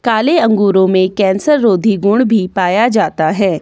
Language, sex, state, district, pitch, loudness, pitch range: Hindi, female, Himachal Pradesh, Shimla, 200 Hz, -12 LUFS, 190-225 Hz